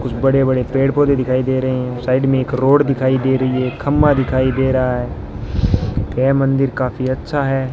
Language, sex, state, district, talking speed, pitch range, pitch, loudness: Hindi, male, Rajasthan, Bikaner, 210 wpm, 130-135 Hz, 130 Hz, -16 LUFS